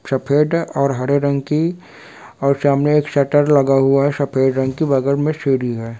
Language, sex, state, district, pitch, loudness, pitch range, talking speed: Hindi, male, Bihar, Sitamarhi, 140 Hz, -17 LUFS, 135-150 Hz, 190 wpm